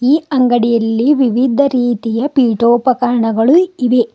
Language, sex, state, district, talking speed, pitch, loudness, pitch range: Kannada, female, Karnataka, Bidar, 85 wpm, 245 Hz, -13 LUFS, 235-265 Hz